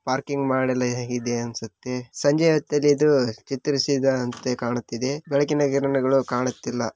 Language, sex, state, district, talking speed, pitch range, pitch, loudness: Kannada, male, Karnataka, Raichur, 120 wpm, 125-140 Hz, 130 Hz, -23 LUFS